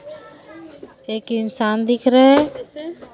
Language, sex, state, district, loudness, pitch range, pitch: Hindi, female, Chhattisgarh, Raipur, -17 LUFS, 230-300 Hz, 265 Hz